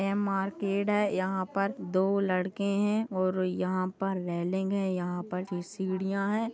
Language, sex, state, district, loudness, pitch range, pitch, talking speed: Hindi, female, Goa, North and South Goa, -30 LUFS, 185-200 Hz, 190 Hz, 165 wpm